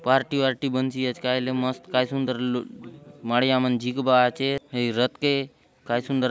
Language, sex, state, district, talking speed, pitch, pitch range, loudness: Halbi, male, Chhattisgarh, Bastar, 170 wpm, 130 Hz, 125-135 Hz, -24 LUFS